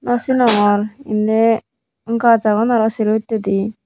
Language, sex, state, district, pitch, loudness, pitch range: Chakma, female, Tripura, Unakoti, 220 Hz, -16 LUFS, 215-230 Hz